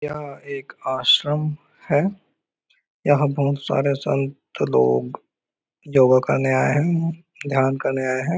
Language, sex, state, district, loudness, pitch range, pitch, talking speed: Hindi, male, Chhattisgarh, Raigarh, -21 LUFS, 130-150 Hz, 140 Hz, 120 wpm